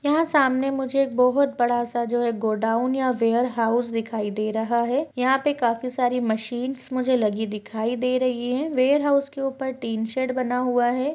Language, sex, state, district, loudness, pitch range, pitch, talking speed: Hindi, female, Chhattisgarh, Balrampur, -23 LUFS, 230-265 Hz, 250 Hz, 200 wpm